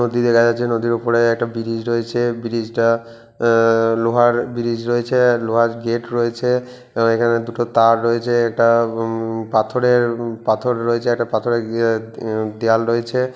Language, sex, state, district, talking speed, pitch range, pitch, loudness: Bengali, male, West Bengal, Purulia, 145 wpm, 115-120 Hz, 115 Hz, -18 LUFS